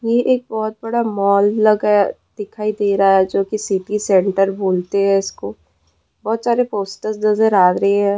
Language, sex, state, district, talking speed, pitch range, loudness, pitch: Hindi, female, West Bengal, Purulia, 175 wpm, 195-215 Hz, -17 LUFS, 200 Hz